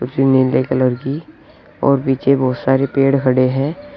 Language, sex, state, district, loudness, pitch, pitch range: Hindi, male, Uttar Pradesh, Shamli, -16 LUFS, 135 Hz, 130-140 Hz